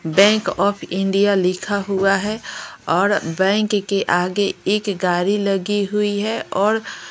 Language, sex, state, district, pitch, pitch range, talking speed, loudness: Hindi, female, Bihar, Patna, 200 Hz, 190-205 Hz, 135 wpm, -19 LUFS